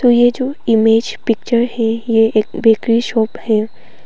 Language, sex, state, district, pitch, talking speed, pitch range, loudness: Hindi, female, Arunachal Pradesh, Papum Pare, 230 Hz, 150 wpm, 225-240 Hz, -15 LUFS